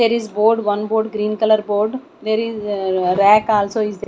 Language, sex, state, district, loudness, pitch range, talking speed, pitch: English, female, Odisha, Nuapada, -17 LUFS, 205-220 Hz, 220 wpm, 215 Hz